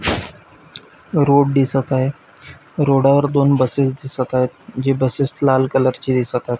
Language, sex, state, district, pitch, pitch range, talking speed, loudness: Marathi, male, Maharashtra, Pune, 135 Hz, 130-140 Hz, 135 wpm, -17 LUFS